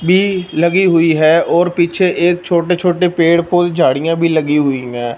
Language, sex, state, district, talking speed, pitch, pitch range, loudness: Hindi, male, Punjab, Fazilka, 185 wpm, 170 Hz, 160-180 Hz, -13 LUFS